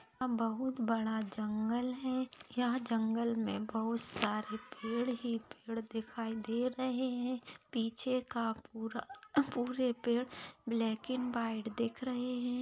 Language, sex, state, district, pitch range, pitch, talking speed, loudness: Hindi, female, Maharashtra, Aurangabad, 225-250 Hz, 235 Hz, 135 wpm, -37 LUFS